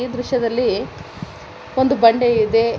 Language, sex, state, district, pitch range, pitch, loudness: Kannada, female, Karnataka, Koppal, 230-250 Hz, 245 Hz, -17 LUFS